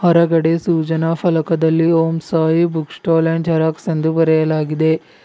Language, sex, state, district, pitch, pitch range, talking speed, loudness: Kannada, male, Karnataka, Bidar, 165 Hz, 160-165 Hz, 125 wpm, -16 LUFS